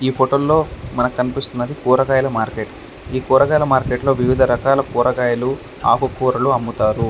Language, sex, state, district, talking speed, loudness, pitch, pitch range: Telugu, male, Andhra Pradesh, Krishna, 110 wpm, -17 LUFS, 130 Hz, 125-135 Hz